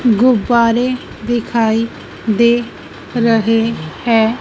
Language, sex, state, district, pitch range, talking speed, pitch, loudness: Hindi, female, Madhya Pradesh, Dhar, 225-240 Hz, 70 wpm, 230 Hz, -15 LUFS